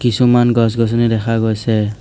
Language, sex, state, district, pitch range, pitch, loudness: Assamese, male, Assam, Hailakandi, 110-120 Hz, 115 Hz, -14 LUFS